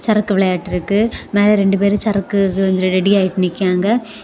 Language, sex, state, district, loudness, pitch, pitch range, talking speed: Tamil, female, Tamil Nadu, Kanyakumari, -16 LUFS, 200 Hz, 185-210 Hz, 140 wpm